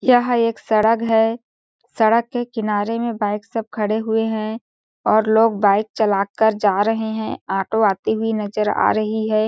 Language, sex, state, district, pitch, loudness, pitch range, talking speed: Hindi, female, Chhattisgarh, Sarguja, 220 Hz, -19 LUFS, 210-225 Hz, 175 wpm